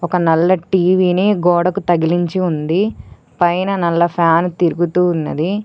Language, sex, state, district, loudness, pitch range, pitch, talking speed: Telugu, female, Telangana, Mahabubabad, -15 LUFS, 170-185 Hz, 175 Hz, 115 wpm